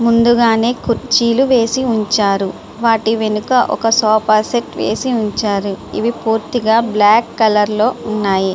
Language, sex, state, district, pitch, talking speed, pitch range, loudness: Telugu, female, Andhra Pradesh, Srikakulam, 225 Hz, 110 wpm, 210-235 Hz, -14 LUFS